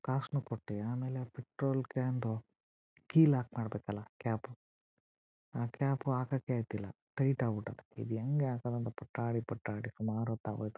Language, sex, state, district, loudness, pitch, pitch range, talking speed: Kannada, male, Karnataka, Chamarajanagar, -36 LUFS, 120 Hz, 110-130 Hz, 135 wpm